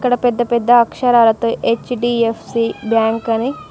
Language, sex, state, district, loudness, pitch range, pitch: Telugu, female, Telangana, Mahabubabad, -15 LUFS, 230-245 Hz, 235 Hz